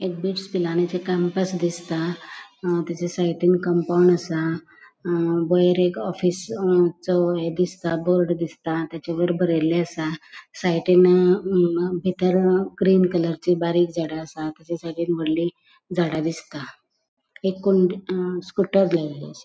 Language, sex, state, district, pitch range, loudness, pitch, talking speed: Konkani, female, Goa, North and South Goa, 170-180 Hz, -22 LUFS, 175 Hz, 130 wpm